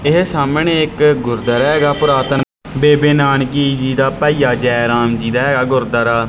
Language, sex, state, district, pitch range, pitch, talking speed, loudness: Punjabi, male, Punjab, Kapurthala, 120-150 Hz, 135 Hz, 170 wpm, -14 LUFS